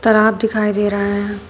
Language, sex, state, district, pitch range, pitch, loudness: Hindi, female, Uttar Pradesh, Shamli, 205-220 Hz, 210 Hz, -17 LUFS